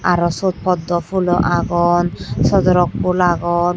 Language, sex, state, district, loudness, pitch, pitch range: Chakma, male, Tripura, Dhalai, -16 LUFS, 175 Hz, 175-180 Hz